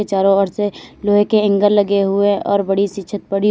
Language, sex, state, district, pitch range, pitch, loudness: Hindi, female, Uttar Pradesh, Lalitpur, 195-205 Hz, 200 Hz, -16 LUFS